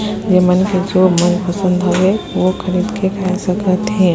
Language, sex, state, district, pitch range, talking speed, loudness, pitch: Surgujia, female, Chhattisgarh, Sarguja, 185-195 Hz, 175 wpm, -15 LUFS, 185 Hz